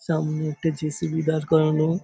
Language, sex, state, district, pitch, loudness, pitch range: Bengali, male, West Bengal, Paschim Medinipur, 155 Hz, -24 LUFS, 155-160 Hz